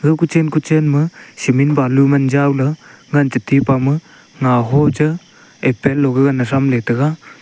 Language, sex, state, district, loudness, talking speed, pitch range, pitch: Wancho, male, Arunachal Pradesh, Longding, -15 LUFS, 160 wpm, 135-150 Hz, 140 Hz